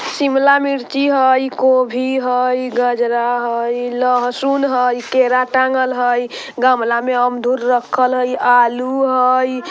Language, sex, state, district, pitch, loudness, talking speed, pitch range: Bajjika, male, Bihar, Vaishali, 255 Hz, -15 LUFS, 115 wpm, 245-260 Hz